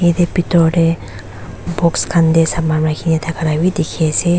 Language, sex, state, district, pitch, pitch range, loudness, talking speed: Nagamese, female, Nagaland, Dimapur, 165 Hz, 155-170 Hz, -15 LUFS, 165 wpm